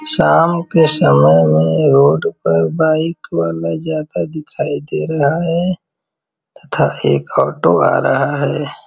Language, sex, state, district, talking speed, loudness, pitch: Hindi, male, Uttar Pradesh, Varanasi, 130 wpm, -14 LUFS, 155 Hz